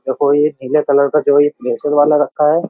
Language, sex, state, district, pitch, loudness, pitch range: Hindi, male, Uttar Pradesh, Jyotiba Phule Nagar, 145 Hz, -14 LUFS, 140-150 Hz